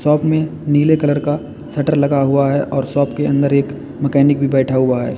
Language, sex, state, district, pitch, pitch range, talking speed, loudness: Hindi, male, Uttar Pradesh, Lalitpur, 140 Hz, 140-145 Hz, 220 wpm, -16 LUFS